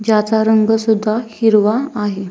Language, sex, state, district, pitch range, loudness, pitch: Marathi, female, Maharashtra, Dhule, 210-225 Hz, -15 LUFS, 220 Hz